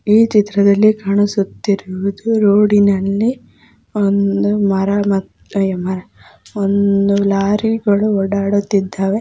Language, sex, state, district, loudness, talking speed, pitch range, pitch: Kannada, female, Karnataka, Dakshina Kannada, -15 LUFS, 70 wpm, 195-205 Hz, 200 Hz